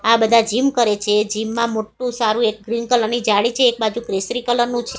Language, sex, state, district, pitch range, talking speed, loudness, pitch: Gujarati, female, Gujarat, Gandhinagar, 220-240 Hz, 240 wpm, -18 LUFS, 230 Hz